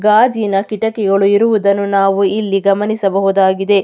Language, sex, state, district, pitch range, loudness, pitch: Kannada, female, Karnataka, Mysore, 195-215 Hz, -13 LUFS, 200 Hz